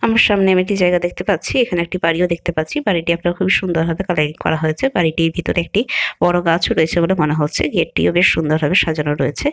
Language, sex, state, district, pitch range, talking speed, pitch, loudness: Bengali, female, West Bengal, Jhargram, 160-185 Hz, 220 wpm, 175 Hz, -16 LUFS